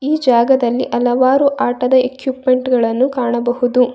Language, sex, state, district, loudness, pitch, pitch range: Kannada, female, Karnataka, Bangalore, -15 LUFS, 255 Hz, 245-260 Hz